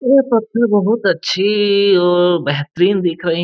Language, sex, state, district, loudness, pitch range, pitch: Hindi, male, Jharkhand, Jamtara, -14 LUFS, 175-215 Hz, 195 Hz